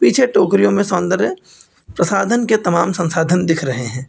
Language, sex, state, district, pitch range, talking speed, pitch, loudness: Hindi, male, Uttar Pradesh, Lucknow, 165-195 Hz, 160 wpm, 175 Hz, -16 LUFS